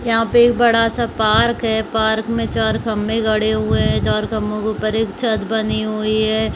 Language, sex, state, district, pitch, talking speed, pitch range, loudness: Hindi, female, Chhattisgarh, Bilaspur, 220 Hz, 210 wpm, 215-230 Hz, -17 LUFS